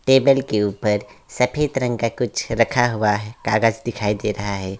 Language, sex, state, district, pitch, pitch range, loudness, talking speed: Hindi, male, West Bengal, Alipurduar, 110 Hz, 105-125 Hz, -20 LUFS, 185 wpm